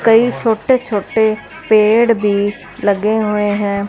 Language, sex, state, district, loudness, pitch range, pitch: Hindi, female, Punjab, Fazilka, -15 LUFS, 205-225 Hz, 215 Hz